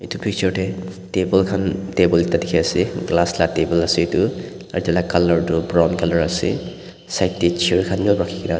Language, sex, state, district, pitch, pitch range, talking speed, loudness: Nagamese, male, Nagaland, Dimapur, 90 Hz, 85-95 Hz, 175 wpm, -19 LUFS